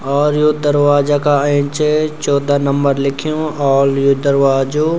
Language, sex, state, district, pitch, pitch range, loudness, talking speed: Garhwali, male, Uttarakhand, Uttarkashi, 145 Hz, 140-150 Hz, -14 LUFS, 130 wpm